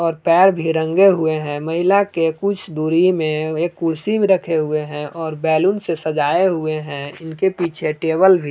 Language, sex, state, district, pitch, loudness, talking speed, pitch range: Hindi, male, Jharkhand, Palamu, 165 Hz, -18 LUFS, 195 wpm, 155-180 Hz